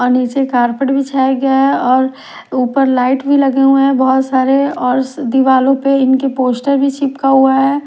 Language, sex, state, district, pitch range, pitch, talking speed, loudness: Hindi, female, Odisha, Nuapada, 260-275 Hz, 270 Hz, 175 wpm, -13 LUFS